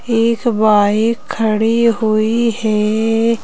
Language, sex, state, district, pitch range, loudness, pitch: Hindi, female, Madhya Pradesh, Bhopal, 215-230 Hz, -14 LUFS, 225 Hz